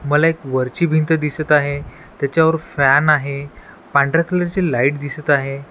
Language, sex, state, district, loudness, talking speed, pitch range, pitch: Marathi, male, Maharashtra, Washim, -17 LUFS, 145 wpm, 140-160 Hz, 150 Hz